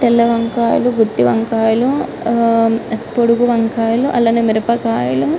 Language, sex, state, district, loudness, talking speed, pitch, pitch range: Telugu, female, Telangana, Karimnagar, -15 LUFS, 110 wpm, 230 Hz, 225-235 Hz